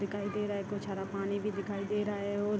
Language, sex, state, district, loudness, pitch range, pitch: Hindi, female, Bihar, Darbhanga, -35 LUFS, 200-205 Hz, 200 Hz